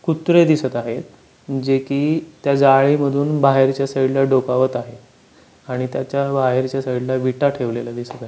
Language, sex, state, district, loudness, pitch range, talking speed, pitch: Marathi, male, Maharashtra, Pune, -18 LUFS, 125-140 Hz, 175 wpm, 135 Hz